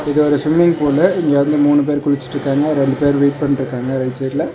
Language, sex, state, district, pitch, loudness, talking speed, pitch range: Tamil, male, Tamil Nadu, Nilgiris, 145 Hz, -15 LUFS, 225 wpm, 140-145 Hz